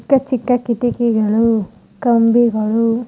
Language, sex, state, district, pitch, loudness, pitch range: Kannada, female, Karnataka, Chamarajanagar, 235 Hz, -16 LUFS, 225-245 Hz